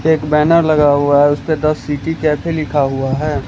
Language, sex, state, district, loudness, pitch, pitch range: Hindi, male, Gujarat, Valsad, -14 LUFS, 150 Hz, 145-155 Hz